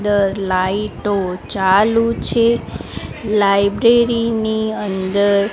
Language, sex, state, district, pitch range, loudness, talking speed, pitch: Gujarati, female, Gujarat, Gandhinagar, 195-225 Hz, -16 LUFS, 75 wpm, 205 Hz